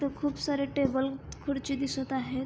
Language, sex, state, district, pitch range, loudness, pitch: Marathi, female, Maharashtra, Pune, 265-280 Hz, -31 LUFS, 275 Hz